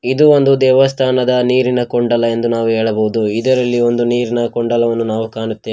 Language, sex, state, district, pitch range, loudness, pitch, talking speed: Kannada, male, Karnataka, Koppal, 115-125 Hz, -14 LUFS, 120 Hz, 145 wpm